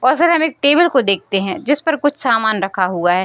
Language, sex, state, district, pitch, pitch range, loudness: Hindi, female, Bihar, East Champaran, 255 Hz, 195-295 Hz, -15 LUFS